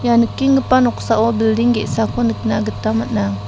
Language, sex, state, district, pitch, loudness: Garo, female, Meghalaya, South Garo Hills, 175 Hz, -16 LUFS